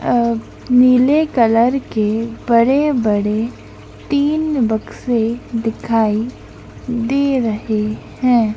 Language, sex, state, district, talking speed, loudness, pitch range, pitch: Hindi, female, Madhya Pradesh, Dhar, 90 wpm, -16 LUFS, 225-255 Hz, 235 Hz